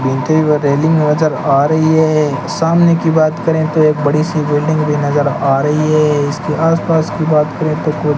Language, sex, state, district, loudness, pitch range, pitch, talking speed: Hindi, male, Rajasthan, Bikaner, -13 LUFS, 145-160 Hz, 155 Hz, 215 wpm